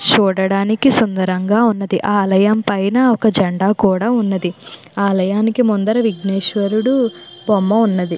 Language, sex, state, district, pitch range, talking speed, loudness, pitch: Telugu, female, Andhra Pradesh, Chittoor, 190-220 Hz, 125 wpm, -15 LUFS, 205 Hz